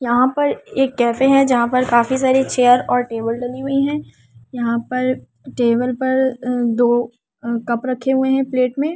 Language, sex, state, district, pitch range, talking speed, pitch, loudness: Hindi, female, Delhi, New Delhi, 240-265 Hz, 175 wpm, 250 Hz, -17 LUFS